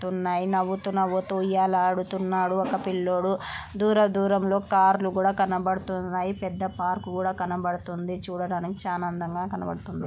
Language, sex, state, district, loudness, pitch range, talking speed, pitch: Telugu, female, Andhra Pradesh, Anantapur, -26 LUFS, 180-190 Hz, 120 wpm, 185 Hz